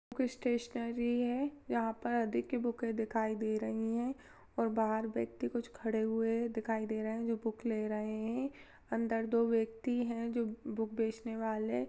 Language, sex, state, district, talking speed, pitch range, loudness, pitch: Hindi, female, Rajasthan, Churu, 185 wpm, 220-235 Hz, -36 LUFS, 225 Hz